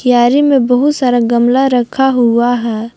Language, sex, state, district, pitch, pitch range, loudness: Hindi, female, Jharkhand, Palamu, 245 Hz, 235-265 Hz, -11 LUFS